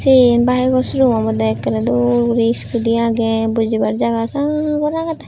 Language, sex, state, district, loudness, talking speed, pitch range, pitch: Chakma, female, Tripura, Unakoti, -16 LUFS, 160 wpm, 225-255 Hz, 235 Hz